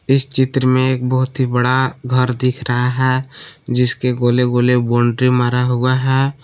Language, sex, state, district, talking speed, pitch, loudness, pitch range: Hindi, male, Jharkhand, Palamu, 170 wpm, 125 Hz, -16 LUFS, 125-130 Hz